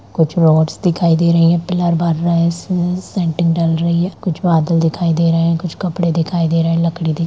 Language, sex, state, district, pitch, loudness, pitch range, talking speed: Hindi, female, Bihar, Darbhanga, 170 Hz, -15 LUFS, 165-175 Hz, 230 wpm